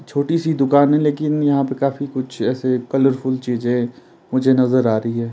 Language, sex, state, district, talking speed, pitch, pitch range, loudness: Hindi, male, Himachal Pradesh, Shimla, 190 wpm, 130 Hz, 125-140 Hz, -18 LUFS